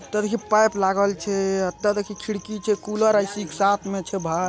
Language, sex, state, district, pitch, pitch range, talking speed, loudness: Hindi, male, Bihar, Araria, 205 Hz, 195-210 Hz, 215 wpm, -23 LUFS